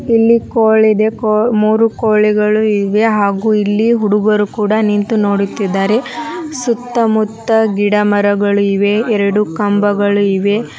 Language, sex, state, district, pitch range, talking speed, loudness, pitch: Kannada, male, Karnataka, Dharwad, 205-225 Hz, 110 wpm, -13 LUFS, 215 Hz